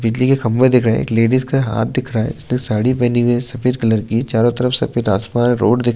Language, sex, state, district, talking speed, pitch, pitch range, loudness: Hindi, male, Uttarakhand, Tehri Garhwal, 280 wpm, 120 Hz, 115-125 Hz, -16 LUFS